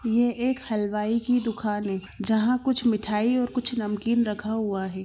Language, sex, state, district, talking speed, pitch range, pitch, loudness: Hindi, female, Chhattisgarh, Bilaspur, 180 wpm, 210-240 Hz, 225 Hz, -26 LUFS